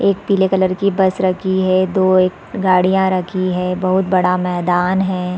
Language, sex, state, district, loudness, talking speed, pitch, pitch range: Hindi, female, Chhattisgarh, Sarguja, -16 LUFS, 165 wpm, 185 Hz, 180-190 Hz